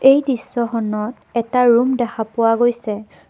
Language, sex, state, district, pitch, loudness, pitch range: Assamese, female, Assam, Kamrup Metropolitan, 235 Hz, -18 LUFS, 225-250 Hz